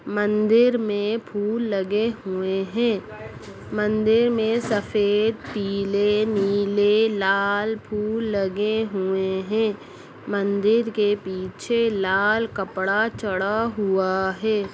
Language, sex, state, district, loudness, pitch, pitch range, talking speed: Hindi, female, Bihar, Jamui, -22 LUFS, 210 Hz, 195-220 Hz, 100 wpm